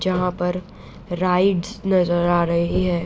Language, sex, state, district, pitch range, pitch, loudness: Hindi, female, Bihar, Araria, 175-185 Hz, 180 Hz, -20 LUFS